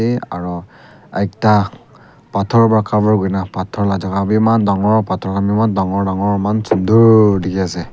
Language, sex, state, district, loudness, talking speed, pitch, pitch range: Nagamese, male, Nagaland, Kohima, -15 LUFS, 130 wpm, 100 Hz, 95-110 Hz